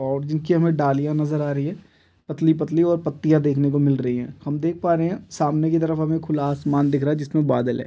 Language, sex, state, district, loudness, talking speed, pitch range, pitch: Hindi, male, Chhattisgarh, Rajnandgaon, -21 LUFS, 250 wpm, 145-160 Hz, 150 Hz